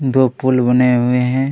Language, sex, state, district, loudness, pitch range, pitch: Hindi, male, Chhattisgarh, Kabirdham, -14 LUFS, 125-130 Hz, 125 Hz